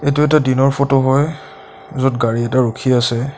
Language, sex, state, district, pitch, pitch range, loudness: Assamese, male, Assam, Sonitpur, 130 Hz, 120-140 Hz, -15 LUFS